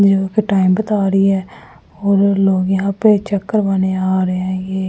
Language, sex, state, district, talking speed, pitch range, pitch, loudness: Hindi, female, Delhi, New Delhi, 195 wpm, 190-200 Hz, 195 Hz, -16 LUFS